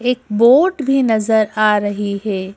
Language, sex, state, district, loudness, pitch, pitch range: Hindi, female, Madhya Pradesh, Bhopal, -15 LUFS, 220 Hz, 205-250 Hz